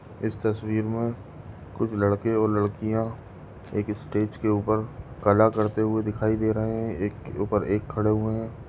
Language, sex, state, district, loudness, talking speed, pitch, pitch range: Hindi, female, Goa, North and South Goa, -26 LUFS, 170 wpm, 110 Hz, 105-110 Hz